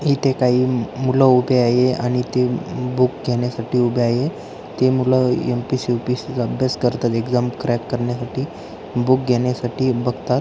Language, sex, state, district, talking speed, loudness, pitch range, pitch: Marathi, male, Maharashtra, Aurangabad, 150 wpm, -19 LUFS, 120-130 Hz, 125 Hz